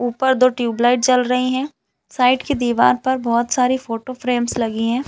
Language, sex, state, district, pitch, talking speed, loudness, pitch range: Hindi, female, Chhattisgarh, Balrampur, 250 Hz, 190 wpm, -18 LUFS, 240-260 Hz